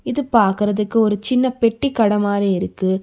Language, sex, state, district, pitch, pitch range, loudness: Tamil, female, Tamil Nadu, Nilgiris, 210 Hz, 200-235 Hz, -18 LUFS